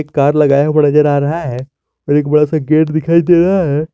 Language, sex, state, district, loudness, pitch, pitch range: Hindi, male, Jharkhand, Garhwa, -12 LUFS, 150 Hz, 145-155 Hz